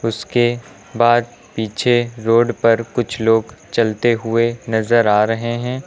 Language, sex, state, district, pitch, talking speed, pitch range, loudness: Hindi, male, Uttar Pradesh, Lucknow, 115 Hz, 135 wpm, 115-120 Hz, -17 LUFS